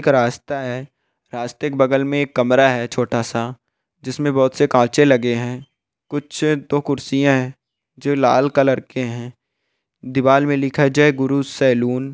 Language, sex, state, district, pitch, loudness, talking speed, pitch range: Hindi, male, Bihar, Bhagalpur, 135 Hz, -18 LUFS, 165 wpm, 125-140 Hz